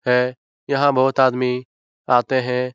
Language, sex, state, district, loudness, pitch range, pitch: Hindi, male, Bihar, Jahanabad, -19 LUFS, 125-130 Hz, 125 Hz